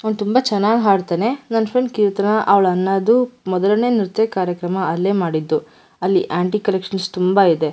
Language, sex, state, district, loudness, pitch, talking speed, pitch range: Kannada, female, Karnataka, Mysore, -18 LUFS, 200 Hz, 140 wpm, 185-220 Hz